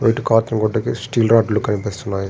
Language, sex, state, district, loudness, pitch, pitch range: Telugu, male, Andhra Pradesh, Srikakulam, -18 LUFS, 110 Hz, 105-115 Hz